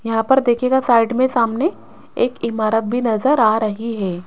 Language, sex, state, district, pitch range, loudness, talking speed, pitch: Hindi, female, Rajasthan, Jaipur, 225-255 Hz, -17 LUFS, 180 wpm, 230 Hz